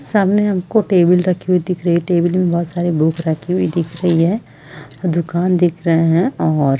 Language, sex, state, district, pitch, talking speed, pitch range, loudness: Hindi, female, Chhattisgarh, Raigarh, 175 Hz, 210 wpm, 165-180 Hz, -16 LUFS